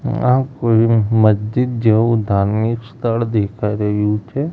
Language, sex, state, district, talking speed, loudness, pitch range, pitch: Gujarati, male, Gujarat, Gandhinagar, 120 wpm, -16 LUFS, 105-120 Hz, 115 Hz